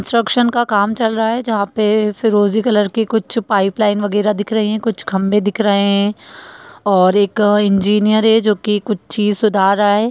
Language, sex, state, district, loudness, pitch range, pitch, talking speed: Hindi, female, Bihar, Darbhanga, -15 LUFS, 205-225 Hz, 210 Hz, 190 wpm